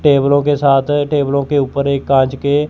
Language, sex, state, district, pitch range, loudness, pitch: Hindi, male, Chandigarh, Chandigarh, 140-145 Hz, -14 LUFS, 140 Hz